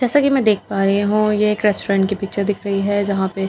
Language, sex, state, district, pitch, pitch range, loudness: Hindi, female, Bihar, Katihar, 200 Hz, 195-210 Hz, -17 LUFS